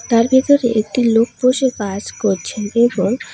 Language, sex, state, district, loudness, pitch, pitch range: Bengali, female, West Bengal, Alipurduar, -16 LUFS, 230 Hz, 210-255 Hz